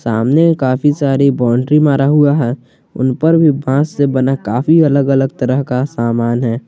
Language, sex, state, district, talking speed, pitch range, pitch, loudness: Hindi, male, Jharkhand, Garhwa, 180 wpm, 125-145 Hz, 135 Hz, -13 LUFS